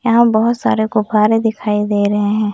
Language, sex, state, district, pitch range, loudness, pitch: Hindi, female, Jharkhand, Deoghar, 210-225 Hz, -15 LUFS, 215 Hz